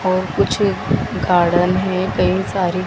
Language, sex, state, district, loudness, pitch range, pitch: Hindi, female, Madhya Pradesh, Dhar, -17 LUFS, 180-185 Hz, 185 Hz